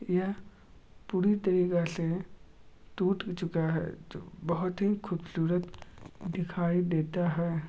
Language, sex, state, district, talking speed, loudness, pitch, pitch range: Magahi, male, Bihar, Gaya, 110 wpm, -31 LUFS, 180 Hz, 170-185 Hz